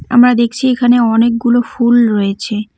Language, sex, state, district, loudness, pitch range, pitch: Bengali, female, West Bengal, Cooch Behar, -12 LUFS, 225-245 Hz, 235 Hz